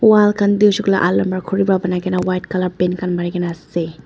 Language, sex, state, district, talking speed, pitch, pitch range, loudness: Nagamese, female, Nagaland, Dimapur, 250 wpm, 185 Hz, 180-195 Hz, -17 LUFS